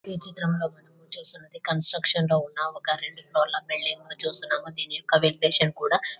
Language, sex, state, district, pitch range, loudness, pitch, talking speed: Telugu, female, Telangana, Nalgonda, 155-170 Hz, -26 LUFS, 160 Hz, 185 wpm